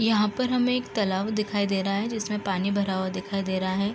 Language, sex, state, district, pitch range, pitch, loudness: Hindi, female, Uttar Pradesh, Gorakhpur, 195-215 Hz, 200 Hz, -26 LUFS